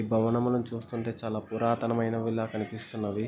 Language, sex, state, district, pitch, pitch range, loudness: Telugu, male, Andhra Pradesh, Guntur, 115 Hz, 110-115 Hz, -30 LUFS